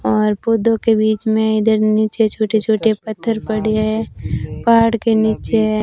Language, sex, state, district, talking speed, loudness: Hindi, female, Rajasthan, Bikaner, 165 wpm, -16 LUFS